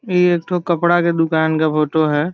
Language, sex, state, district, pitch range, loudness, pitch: Hindi, male, Bihar, Saran, 160-175 Hz, -16 LUFS, 170 Hz